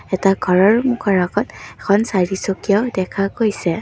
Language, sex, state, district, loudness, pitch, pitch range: Assamese, female, Assam, Kamrup Metropolitan, -17 LUFS, 195 Hz, 185-205 Hz